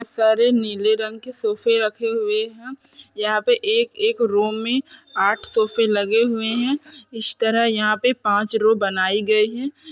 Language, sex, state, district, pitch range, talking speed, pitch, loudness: Hindi, female, Chhattisgarh, Sukma, 215-260 Hz, 165 wpm, 225 Hz, -20 LUFS